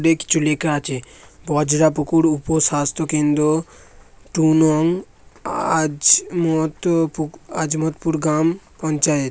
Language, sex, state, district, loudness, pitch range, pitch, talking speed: Bengali, male, West Bengal, Dakshin Dinajpur, -19 LUFS, 150-160 Hz, 155 Hz, 85 wpm